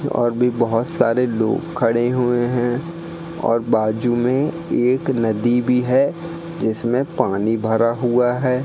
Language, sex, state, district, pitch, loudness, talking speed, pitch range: Hindi, male, Madhya Pradesh, Katni, 125 Hz, -19 LUFS, 140 wpm, 115-135 Hz